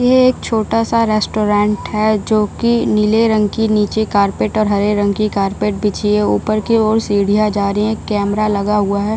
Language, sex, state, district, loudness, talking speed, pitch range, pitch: Hindi, female, Bihar, Jahanabad, -15 LUFS, 205 wpm, 205-220 Hz, 210 Hz